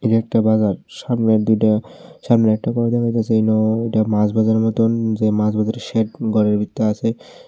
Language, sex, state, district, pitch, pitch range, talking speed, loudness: Bengali, male, Tripura, West Tripura, 110 Hz, 110-115 Hz, 175 wpm, -18 LUFS